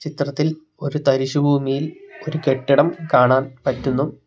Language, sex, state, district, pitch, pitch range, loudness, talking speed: Malayalam, male, Kerala, Kollam, 145 Hz, 135-155 Hz, -19 LUFS, 100 wpm